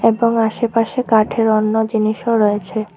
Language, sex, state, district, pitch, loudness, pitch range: Bengali, female, Tripura, Unakoti, 220 Hz, -16 LUFS, 215-230 Hz